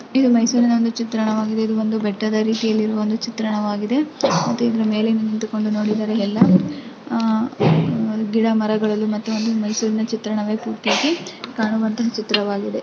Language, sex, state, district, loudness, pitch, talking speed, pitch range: Kannada, female, Karnataka, Mysore, -20 LUFS, 220 Hz, 125 wpm, 215-230 Hz